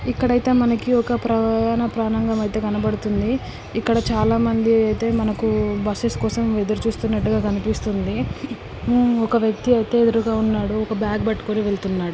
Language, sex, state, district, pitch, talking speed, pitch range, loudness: Telugu, female, Andhra Pradesh, Srikakulam, 225 Hz, 120 wpm, 215-230 Hz, -20 LUFS